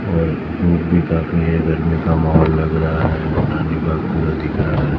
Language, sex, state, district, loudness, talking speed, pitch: Hindi, male, Maharashtra, Mumbai Suburban, -17 LUFS, 95 wpm, 80 Hz